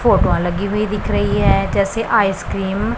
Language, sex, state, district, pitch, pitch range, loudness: Hindi, female, Punjab, Pathankot, 200 Hz, 195-210 Hz, -17 LUFS